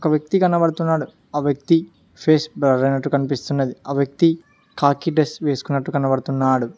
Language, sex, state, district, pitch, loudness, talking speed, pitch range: Telugu, male, Telangana, Mahabubabad, 145 Hz, -20 LUFS, 135 wpm, 135-160 Hz